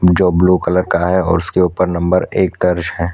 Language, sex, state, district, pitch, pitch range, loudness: Hindi, male, Chhattisgarh, Korba, 90 Hz, 85-90 Hz, -15 LUFS